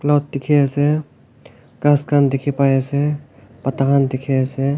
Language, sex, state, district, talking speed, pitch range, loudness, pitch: Nagamese, male, Nagaland, Kohima, 165 wpm, 135-145 Hz, -18 LUFS, 140 Hz